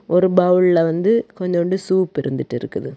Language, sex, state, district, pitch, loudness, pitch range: Tamil, female, Tamil Nadu, Kanyakumari, 180 Hz, -18 LUFS, 170-190 Hz